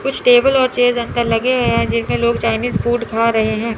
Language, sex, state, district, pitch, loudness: Hindi, female, Chandigarh, Chandigarh, 230 Hz, -15 LUFS